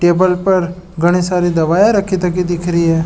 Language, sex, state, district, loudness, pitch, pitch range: Marwari, male, Rajasthan, Nagaur, -14 LUFS, 180 Hz, 175-185 Hz